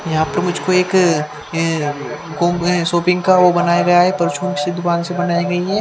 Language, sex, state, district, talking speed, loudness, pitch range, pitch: Hindi, female, Haryana, Charkhi Dadri, 205 wpm, -16 LUFS, 170-180 Hz, 175 Hz